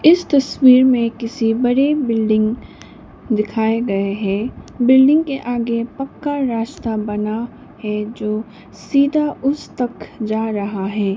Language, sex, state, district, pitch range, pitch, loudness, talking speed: Hindi, female, Sikkim, Gangtok, 215-270 Hz, 230 Hz, -18 LUFS, 125 wpm